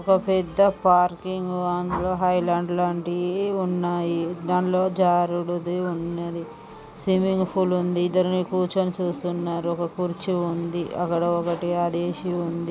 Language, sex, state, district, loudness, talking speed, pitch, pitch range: Telugu, female, Andhra Pradesh, Guntur, -24 LUFS, 100 wpm, 175 Hz, 170-185 Hz